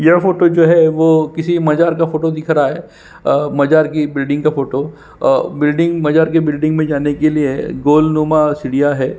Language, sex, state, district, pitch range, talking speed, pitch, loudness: Hindi, male, Chhattisgarh, Sukma, 145-160 Hz, 195 wpm, 155 Hz, -14 LUFS